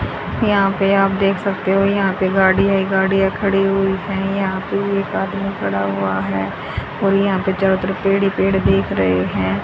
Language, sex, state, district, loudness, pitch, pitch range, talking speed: Hindi, female, Haryana, Rohtak, -17 LUFS, 195 Hz, 120-195 Hz, 200 wpm